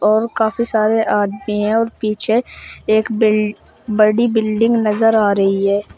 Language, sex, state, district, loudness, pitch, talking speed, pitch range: Hindi, male, Uttar Pradesh, Shamli, -16 LUFS, 215 Hz, 150 wpm, 210-225 Hz